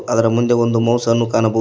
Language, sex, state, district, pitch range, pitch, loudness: Kannada, male, Karnataka, Koppal, 115-120 Hz, 115 Hz, -16 LUFS